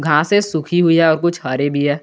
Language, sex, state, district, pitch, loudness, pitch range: Hindi, male, Jharkhand, Garhwa, 160 Hz, -15 LUFS, 145-170 Hz